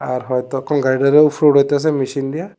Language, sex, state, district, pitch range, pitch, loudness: Bengali, male, Tripura, West Tripura, 130-150 Hz, 140 Hz, -16 LUFS